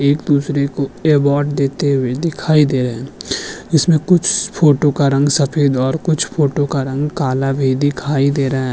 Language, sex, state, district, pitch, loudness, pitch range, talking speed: Hindi, male, Uttarakhand, Tehri Garhwal, 140 Hz, -16 LUFS, 135-150 Hz, 190 wpm